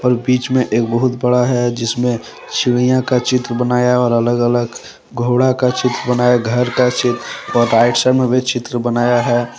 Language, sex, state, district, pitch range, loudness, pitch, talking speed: Hindi, male, Jharkhand, Deoghar, 120-125 Hz, -15 LUFS, 125 Hz, 180 wpm